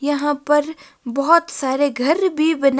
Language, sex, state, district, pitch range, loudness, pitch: Hindi, female, Himachal Pradesh, Shimla, 275-315 Hz, -18 LUFS, 290 Hz